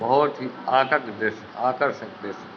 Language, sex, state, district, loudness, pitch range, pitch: Hindi, male, Uttar Pradesh, Hamirpur, -24 LUFS, 110-135 Hz, 120 Hz